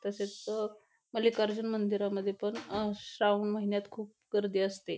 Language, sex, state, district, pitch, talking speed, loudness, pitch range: Marathi, female, Maharashtra, Pune, 205 Hz, 120 wpm, -33 LUFS, 200-215 Hz